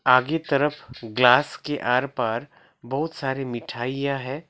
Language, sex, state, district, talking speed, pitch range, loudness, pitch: Hindi, male, West Bengal, Alipurduar, 135 wpm, 125-145 Hz, -24 LUFS, 135 Hz